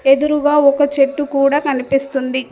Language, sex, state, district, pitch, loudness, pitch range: Telugu, female, Telangana, Mahabubabad, 280 Hz, -15 LUFS, 270-290 Hz